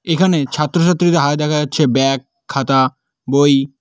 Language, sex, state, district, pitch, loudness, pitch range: Bengali, male, West Bengal, Cooch Behar, 145 Hz, -15 LUFS, 135-165 Hz